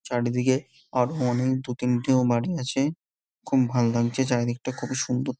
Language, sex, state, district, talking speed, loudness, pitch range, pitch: Bengali, male, West Bengal, Jhargram, 120 wpm, -25 LUFS, 120-130 Hz, 125 Hz